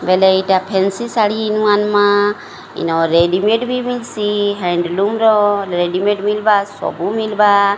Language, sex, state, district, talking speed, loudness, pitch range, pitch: Odia, female, Odisha, Sambalpur, 125 wpm, -15 LUFS, 190-215 Hz, 205 Hz